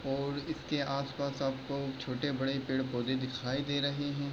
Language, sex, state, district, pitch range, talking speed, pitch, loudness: Hindi, male, Bihar, East Champaran, 130-140 Hz, 140 wpm, 140 Hz, -35 LUFS